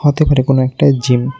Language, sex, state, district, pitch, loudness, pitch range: Bengali, male, Tripura, West Tripura, 135 Hz, -13 LUFS, 130-145 Hz